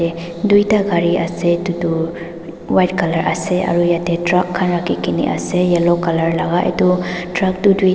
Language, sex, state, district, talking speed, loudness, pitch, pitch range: Nagamese, female, Nagaland, Dimapur, 160 wpm, -16 LUFS, 175 Hz, 170-180 Hz